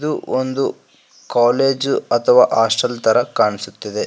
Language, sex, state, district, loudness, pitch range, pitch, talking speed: Kannada, male, Karnataka, Koppal, -17 LUFS, 130-155 Hz, 135 Hz, 105 wpm